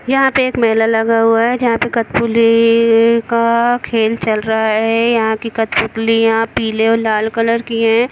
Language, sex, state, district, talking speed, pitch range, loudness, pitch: Hindi, female, Jharkhand, Jamtara, 175 wpm, 225-230 Hz, -14 LUFS, 230 Hz